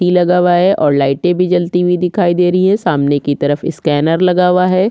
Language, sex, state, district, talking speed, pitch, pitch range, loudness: Hindi, female, Chhattisgarh, Kabirdham, 245 wpm, 180 Hz, 150-180 Hz, -13 LUFS